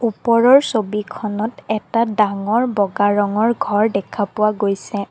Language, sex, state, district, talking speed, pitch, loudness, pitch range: Assamese, female, Assam, Kamrup Metropolitan, 115 wpm, 210 Hz, -18 LUFS, 205-230 Hz